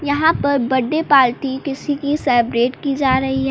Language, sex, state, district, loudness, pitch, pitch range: Hindi, female, Uttar Pradesh, Lucknow, -17 LUFS, 270 Hz, 260-285 Hz